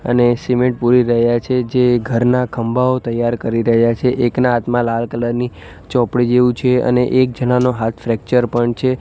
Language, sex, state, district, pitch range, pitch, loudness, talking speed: Gujarati, male, Gujarat, Gandhinagar, 120-125 Hz, 120 Hz, -16 LUFS, 180 wpm